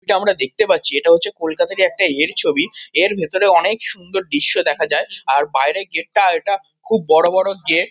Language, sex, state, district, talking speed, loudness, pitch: Bengali, male, West Bengal, Kolkata, 205 wpm, -16 LUFS, 200 Hz